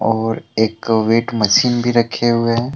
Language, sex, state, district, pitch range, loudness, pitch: Hindi, male, Jharkhand, Deoghar, 110-120 Hz, -16 LUFS, 115 Hz